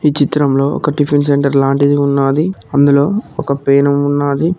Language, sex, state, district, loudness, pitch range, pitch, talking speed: Telugu, male, Telangana, Mahabubabad, -13 LUFS, 140-150 Hz, 140 Hz, 145 wpm